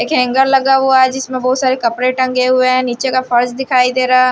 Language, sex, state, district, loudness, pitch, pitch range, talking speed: Hindi, female, Bihar, Patna, -13 LUFS, 255 Hz, 255-260 Hz, 250 wpm